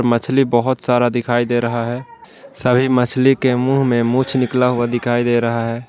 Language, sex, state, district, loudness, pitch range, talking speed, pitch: Hindi, male, Jharkhand, Palamu, -16 LUFS, 120-130 Hz, 195 wpm, 125 Hz